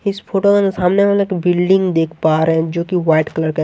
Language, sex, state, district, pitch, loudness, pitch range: Hindi, male, Haryana, Jhajjar, 180 Hz, -15 LUFS, 160-195 Hz